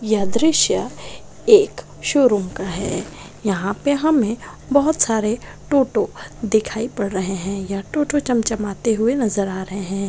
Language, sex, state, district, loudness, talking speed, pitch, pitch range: Maithili, female, Bihar, Saharsa, -19 LUFS, 145 wpm, 225 Hz, 200-275 Hz